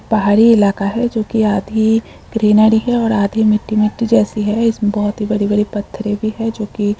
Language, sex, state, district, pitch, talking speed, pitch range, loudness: Hindi, female, Jharkhand, Jamtara, 215 Hz, 190 wpm, 210-225 Hz, -15 LUFS